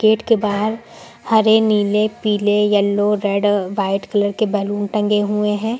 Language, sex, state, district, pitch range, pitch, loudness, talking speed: Hindi, female, Uttar Pradesh, Lucknow, 205-215 Hz, 210 Hz, -17 LUFS, 155 wpm